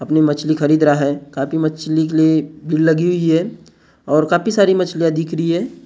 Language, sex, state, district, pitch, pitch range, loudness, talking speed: Hindi, male, Maharashtra, Gondia, 155 Hz, 150-165 Hz, -16 LUFS, 215 wpm